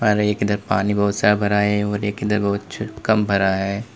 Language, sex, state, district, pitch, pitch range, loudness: Hindi, male, Uttar Pradesh, Lalitpur, 105 Hz, 100-105 Hz, -20 LUFS